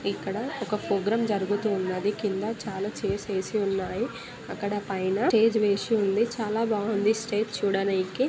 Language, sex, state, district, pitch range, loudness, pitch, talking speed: Telugu, female, Telangana, Nalgonda, 195-220 Hz, -27 LUFS, 205 Hz, 125 wpm